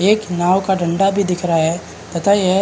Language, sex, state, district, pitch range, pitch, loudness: Hindi, male, Uttarakhand, Uttarkashi, 175-195 Hz, 185 Hz, -17 LUFS